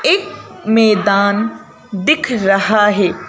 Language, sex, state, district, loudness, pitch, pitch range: Hindi, female, Madhya Pradesh, Bhopal, -14 LUFS, 205 Hz, 200-225 Hz